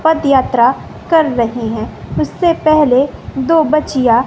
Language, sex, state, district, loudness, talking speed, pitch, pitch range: Hindi, female, Bihar, West Champaran, -13 LUFS, 110 wpm, 270 Hz, 240-310 Hz